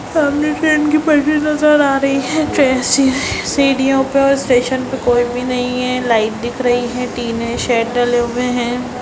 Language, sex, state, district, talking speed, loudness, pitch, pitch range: Hindi, female, Bihar, Muzaffarpur, 180 wpm, -15 LUFS, 255 Hz, 245-280 Hz